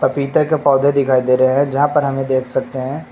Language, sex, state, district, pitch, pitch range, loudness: Hindi, male, Uttar Pradesh, Lucknow, 135 Hz, 130-140 Hz, -16 LUFS